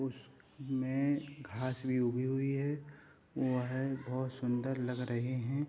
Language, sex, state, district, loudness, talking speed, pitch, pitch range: Hindi, male, Bihar, Madhepura, -36 LUFS, 160 wpm, 130 Hz, 125-140 Hz